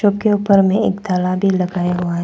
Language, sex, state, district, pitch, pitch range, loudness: Hindi, female, Arunachal Pradesh, Papum Pare, 190 Hz, 180-205 Hz, -16 LUFS